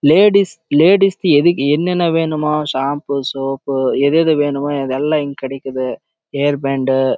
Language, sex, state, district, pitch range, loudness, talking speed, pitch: Tamil, male, Karnataka, Chamarajanagar, 135-160 Hz, -15 LUFS, 75 wpm, 145 Hz